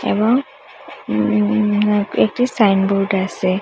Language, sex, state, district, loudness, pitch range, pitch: Bengali, female, Assam, Hailakandi, -17 LUFS, 185-210 Hz, 195 Hz